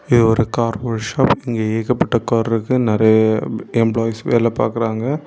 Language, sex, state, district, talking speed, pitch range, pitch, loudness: Tamil, male, Tamil Nadu, Kanyakumari, 125 wpm, 110-120 Hz, 115 Hz, -17 LUFS